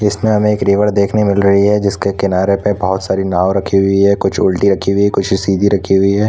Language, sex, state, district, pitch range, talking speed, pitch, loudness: Hindi, male, Chhattisgarh, Korba, 95-100 Hz, 250 wpm, 100 Hz, -13 LUFS